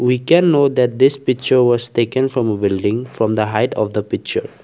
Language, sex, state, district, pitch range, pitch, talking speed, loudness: English, male, Assam, Kamrup Metropolitan, 110-130 Hz, 125 Hz, 220 wpm, -16 LUFS